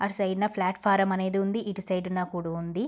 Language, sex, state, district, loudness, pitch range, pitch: Telugu, female, Andhra Pradesh, Guntur, -28 LUFS, 185-200 Hz, 195 Hz